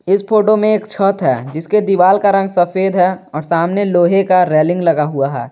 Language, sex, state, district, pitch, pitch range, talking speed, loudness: Hindi, male, Jharkhand, Garhwa, 180 Hz, 165-195 Hz, 215 wpm, -14 LUFS